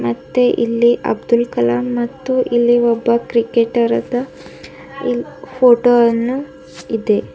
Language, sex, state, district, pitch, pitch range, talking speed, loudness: Kannada, female, Karnataka, Bidar, 240 Hz, 230-245 Hz, 80 wpm, -16 LUFS